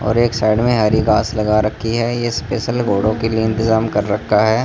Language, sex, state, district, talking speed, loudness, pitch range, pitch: Hindi, male, Haryana, Jhajjar, 230 wpm, -16 LUFS, 105-115 Hz, 110 Hz